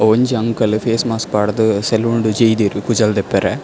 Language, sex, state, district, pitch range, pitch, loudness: Tulu, male, Karnataka, Dakshina Kannada, 105-115 Hz, 110 Hz, -16 LUFS